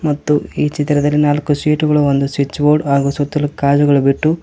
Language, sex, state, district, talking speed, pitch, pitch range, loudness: Kannada, male, Karnataka, Koppal, 160 wpm, 145 Hz, 140-150 Hz, -15 LUFS